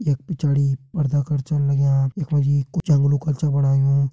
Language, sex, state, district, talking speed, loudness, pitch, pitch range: Hindi, male, Uttarakhand, Tehri Garhwal, 205 wpm, -20 LUFS, 140 Hz, 140-150 Hz